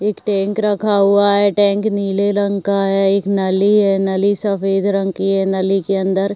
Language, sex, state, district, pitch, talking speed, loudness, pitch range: Hindi, female, Uttar Pradesh, Jyotiba Phule Nagar, 200 Hz, 205 wpm, -16 LUFS, 195-205 Hz